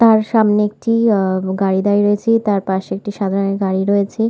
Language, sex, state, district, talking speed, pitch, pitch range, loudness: Bengali, female, West Bengal, Kolkata, 195 wpm, 205 Hz, 195-215 Hz, -16 LUFS